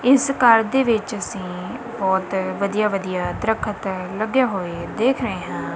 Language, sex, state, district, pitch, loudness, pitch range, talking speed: Punjabi, female, Punjab, Kapurthala, 210 Hz, -21 LUFS, 190-235 Hz, 145 wpm